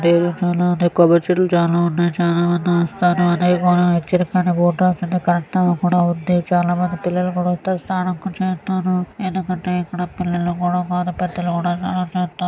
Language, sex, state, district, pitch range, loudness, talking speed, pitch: Telugu, female, Andhra Pradesh, Srikakulam, 175-180 Hz, -18 LUFS, 105 wpm, 180 Hz